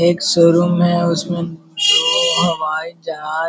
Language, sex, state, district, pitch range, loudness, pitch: Hindi, male, Bihar, Araria, 165-175 Hz, -15 LUFS, 170 Hz